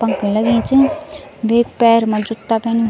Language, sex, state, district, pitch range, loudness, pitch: Garhwali, female, Uttarakhand, Tehri Garhwal, 225-265 Hz, -15 LUFS, 230 Hz